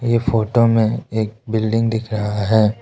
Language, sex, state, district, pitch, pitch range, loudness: Hindi, male, Arunachal Pradesh, Lower Dibang Valley, 110 Hz, 110-115 Hz, -18 LUFS